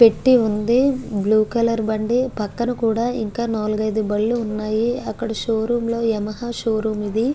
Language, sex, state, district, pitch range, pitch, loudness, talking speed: Telugu, female, Andhra Pradesh, Guntur, 215-235 Hz, 225 Hz, -20 LUFS, 155 wpm